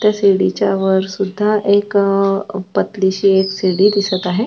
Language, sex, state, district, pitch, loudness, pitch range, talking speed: Marathi, female, Maharashtra, Chandrapur, 195 Hz, -15 LUFS, 190-205 Hz, 175 wpm